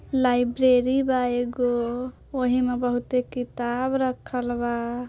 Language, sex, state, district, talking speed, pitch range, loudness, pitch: Bhojpuri, female, Bihar, Gopalganj, 120 wpm, 245-255 Hz, -24 LUFS, 250 Hz